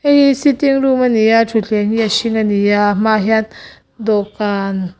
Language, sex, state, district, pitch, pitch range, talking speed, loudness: Mizo, female, Mizoram, Aizawl, 220 Hz, 205-240 Hz, 155 wpm, -14 LUFS